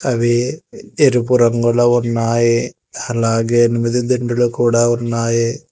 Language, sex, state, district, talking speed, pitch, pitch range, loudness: Telugu, male, Telangana, Hyderabad, 95 wpm, 120 Hz, 115-120 Hz, -15 LUFS